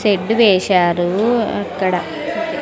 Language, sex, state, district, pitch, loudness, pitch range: Telugu, female, Andhra Pradesh, Sri Satya Sai, 200 Hz, -16 LUFS, 180-235 Hz